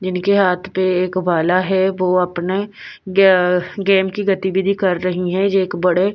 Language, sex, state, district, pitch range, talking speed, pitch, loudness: Hindi, female, Bihar, Patna, 180-195 Hz, 175 wpm, 185 Hz, -17 LUFS